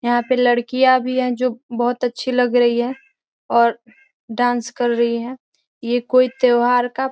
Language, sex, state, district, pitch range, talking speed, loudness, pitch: Hindi, female, Bihar, Gopalganj, 240-255 Hz, 175 wpm, -18 LUFS, 245 Hz